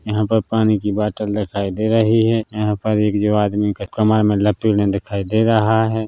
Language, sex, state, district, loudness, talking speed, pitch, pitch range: Hindi, male, Chhattisgarh, Bilaspur, -18 LUFS, 205 wpm, 105 Hz, 105-110 Hz